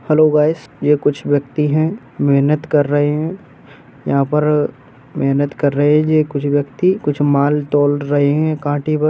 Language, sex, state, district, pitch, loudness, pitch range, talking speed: Hindi, male, Uttar Pradesh, Etah, 145 Hz, -16 LUFS, 145-155 Hz, 165 wpm